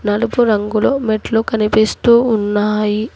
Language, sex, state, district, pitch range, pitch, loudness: Telugu, female, Telangana, Hyderabad, 210-230 Hz, 215 Hz, -15 LUFS